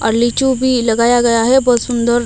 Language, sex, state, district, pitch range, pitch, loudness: Hindi, female, Odisha, Malkangiri, 235-250 Hz, 240 Hz, -13 LUFS